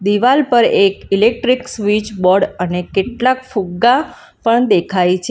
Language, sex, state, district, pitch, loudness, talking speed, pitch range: Gujarati, female, Gujarat, Valsad, 215 Hz, -14 LUFS, 135 wpm, 195-245 Hz